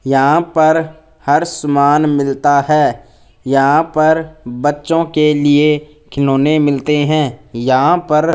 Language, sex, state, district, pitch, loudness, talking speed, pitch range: Hindi, male, Punjab, Fazilka, 150 Hz, -13 LUFS, 115 wpm, 140-155 Hz